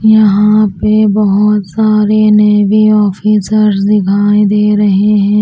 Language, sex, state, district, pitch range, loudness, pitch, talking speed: Hindi, female, Maharashtra, Washim, 205-215 Hz, -9 LUFS, 210 Hz, 110 wpm